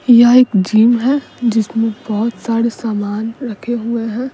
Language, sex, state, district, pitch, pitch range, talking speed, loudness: Hindi, female, Bihar, Patna, 230 Hz, 220-240 Hz, 150 wpm, -15 LUFS